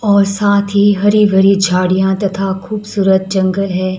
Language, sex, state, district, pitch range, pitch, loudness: Hindi, male, Himachal Pradesh, Shimla, 190-205 Hz, 195 Hz, -13 LUFS